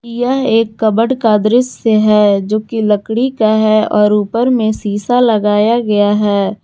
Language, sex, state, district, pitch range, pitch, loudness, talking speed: Hindi, female, Jharkhand, Garhwa, 210-235 Hz, 215 Hz, -12 LUFS, 155 wpm